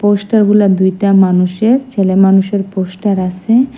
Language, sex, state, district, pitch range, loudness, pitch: Bengali, female, Assam, Hailakandi, 190-210 Hz, -12 LUFS, 195 Hz